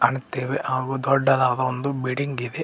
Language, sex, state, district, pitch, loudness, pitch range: Kannada, male, Karnataka, Koppal, 130 Hz, -23 LUFS, 130-135 Hz